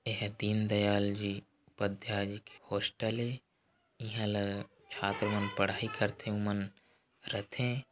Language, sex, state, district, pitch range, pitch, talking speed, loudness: Chhattisgarhi, male, Chhattisgarh, Korba, 100-110 Hz, 105 Hz, 115 wpm, -35 LUFS